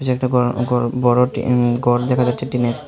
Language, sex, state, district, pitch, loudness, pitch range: Bengali, male, Tripura, Unakoti, 125 Hz, -17 LUFS, 120-125 Hz